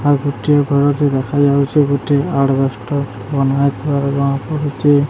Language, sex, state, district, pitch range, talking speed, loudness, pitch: Odia, male, Odisha, Sambalpur, 135-145 Hz, 95 wpm, -16 LUFS, 140 Hz